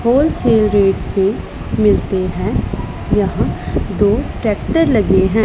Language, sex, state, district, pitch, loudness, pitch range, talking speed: Hindi, female, Punjab, Pathankot, 215 Hz, -16 LUFS, 195-240 Hz, 110 wpm